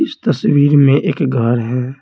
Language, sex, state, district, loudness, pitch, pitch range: Hindi, male, Bihar, Patna, -14 LUFS, 140 Hz, 125-150 Hz